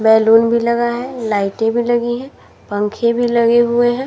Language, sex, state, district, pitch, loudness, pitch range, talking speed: Hindi, female, Uttar Pradesh, Muzaffarnagar, 235 Hz, -15 LUFS, 225-240 Hz, 190 wpm